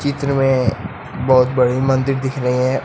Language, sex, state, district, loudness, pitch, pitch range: Hindi, male, Uttar Pradesh, Lucknow, -17 LUFS, 130 Hz, 125-135 Hz